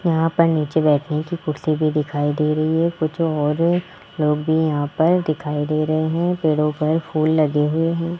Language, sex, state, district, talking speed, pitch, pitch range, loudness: Hindi, male, Rajasthan, Jaipur, 195 wpm, 155 Hz, 150-165 Hz, -20 LUFS